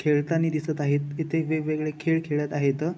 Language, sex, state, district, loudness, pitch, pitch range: Marathi, male, Maharashtra, Chandrapur, -26 LUFS, 155 Hz, 145-160 Hz